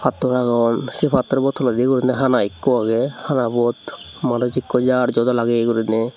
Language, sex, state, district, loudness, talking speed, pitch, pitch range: Chakma, male, Tripura, Unakoti, -19 LUFS, 155 wpm, 125 Hz, 115-130 Hz